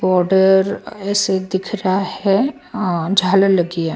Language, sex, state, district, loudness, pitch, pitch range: Hindi, female, Bihar, Patna, -17 LUFS, 190 Hz, 185-195 Hz